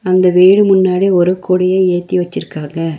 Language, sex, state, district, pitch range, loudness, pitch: Tamil, female, Tamil Nadu, Nilgiris, 175-185 Hz, -12 LUFS, 185 Hz